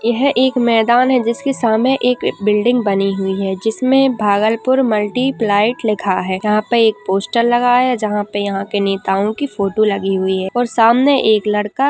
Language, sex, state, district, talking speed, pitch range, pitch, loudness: Hindi, female, Uttar Pradesh, Gorakhpur, 185 wpm, 200-245 Hz, 220 Hz, -15 LUFS